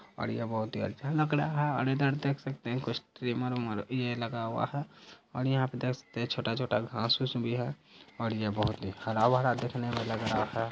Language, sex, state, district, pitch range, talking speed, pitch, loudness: Hindi, male, Bihar, Saharsa, 115-130 Hz, 220 wpm, 120 Hz, -32 LUFS